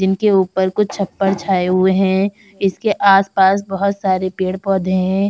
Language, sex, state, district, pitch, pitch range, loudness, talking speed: Hindi, female, Bihar, Samastipur, 195 Hz, 190-200 Hz, -16 LUFS, 145 wpm